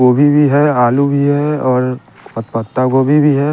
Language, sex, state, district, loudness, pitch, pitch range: Hindi, male, Chandigarh, Chandigarh, -13 LUFS, 140 Hz, 125-145 Hz